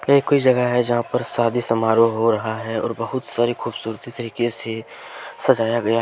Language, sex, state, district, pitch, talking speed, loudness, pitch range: Hindi, male, Jharkhand, Deoghar, 115 Hz, 200 wpm, -20 LUFS, 115-120 Hz